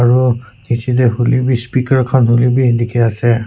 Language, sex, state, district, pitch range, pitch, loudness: Nagamese, male, Nagaland, Kohima, 120-125 Hz, 120 Hz, -14 LUFS